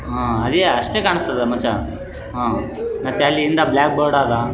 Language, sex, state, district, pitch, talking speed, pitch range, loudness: Kannada, male, Karnataka, Raichur, 145 Hz, 185 wpm, 140-155 Hz, -18 LUFS